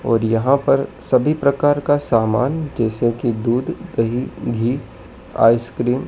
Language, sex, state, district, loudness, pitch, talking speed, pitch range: Hindi, male, Madhya Pradesh, Dhar, -18 LUFS, 120 Hz, 140 wpm, 115-140 Hz